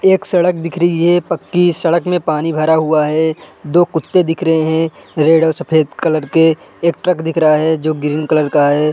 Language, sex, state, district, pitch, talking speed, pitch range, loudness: Hindi, male, Chhattisgarh, Raigarh, 160 Hz, 220 wpm, 155-170 Hz, -14 LUFS